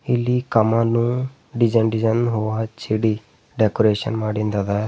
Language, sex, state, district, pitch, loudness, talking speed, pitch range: Kannada, male, Karnataka, Bidar, 110 Hz, -20 LUFS, 110 wpm, 110-120 Hz